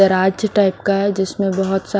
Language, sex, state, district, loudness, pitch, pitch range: Hindi, female, Haryana, Rohtak, -17 LUFS, 195 Hz, 190-200 Hz